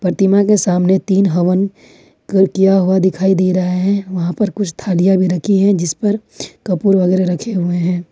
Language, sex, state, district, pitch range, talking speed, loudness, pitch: Hindi, female, Jharkhand, Ranchi, 180-195 Hz, 190 wpm, -15 LUFS, 190 Hz